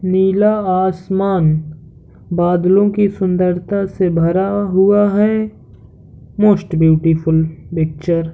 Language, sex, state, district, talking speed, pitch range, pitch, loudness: Hindi, male, Uttar Pradesh, Hamirpur, 95 wpm, 165-200 Hz, 185 Hz, -15 LUFS